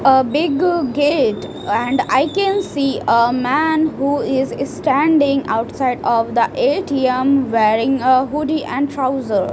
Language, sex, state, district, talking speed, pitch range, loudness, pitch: English, female, Punjab, Fazilka, 130 wpm, 255-300 Hz, -17 LUFS, 275 Hz